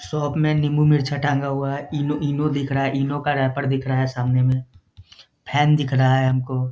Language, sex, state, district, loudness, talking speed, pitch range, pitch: Hindi, male, Bihar, Jahanabad, -21 LUFS, 225 wpm, 130-145 Hz, 140 Hz